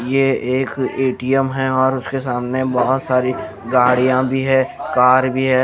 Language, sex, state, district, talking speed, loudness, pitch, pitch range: Hindi, male, Punjab, Kapurthala, 160 wpm, -17 LUFS, 130 Hz, 125-135 Hz